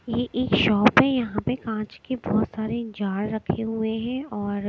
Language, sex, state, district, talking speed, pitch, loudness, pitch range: Hindi, female, Maharashtra, Mumbai Suburban, 180 wpm, 225 Hz, -24 LUFS, 210-245 Hz